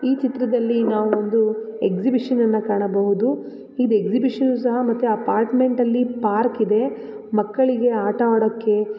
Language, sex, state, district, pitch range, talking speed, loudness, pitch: Kannada, female, Karnataka, Raichur, 215-250 Hz, 105 wpm, -20 LUFS, 225 Hz